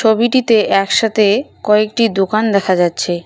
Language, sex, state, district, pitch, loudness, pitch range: Bengali, female, West Bengal, Cooch Behar, 215 Hz, -14 LUFS, 195-225 Hz